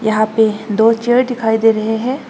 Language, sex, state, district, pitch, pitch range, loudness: Hindi, female, Assam, Hailakandi, 225 Hz, 220-240 Hz, -14 LUFS